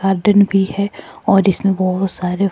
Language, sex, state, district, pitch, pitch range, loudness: Hindi, female, Himachal Pradesh, Shimla, 195 Hz, 190-200 Hz, -16 LUFS